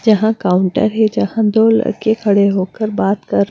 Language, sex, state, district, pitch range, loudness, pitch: Hindi, female, Punjab, Kapurthala, 195-220 Hz, -15 LUFS, 215 Hz